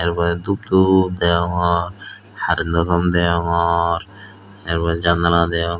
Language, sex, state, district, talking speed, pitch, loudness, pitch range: Chakma, male, Tripura, Dhalai, 125 wpm, 85 Hz, -18 LUFS, 85-95 Hz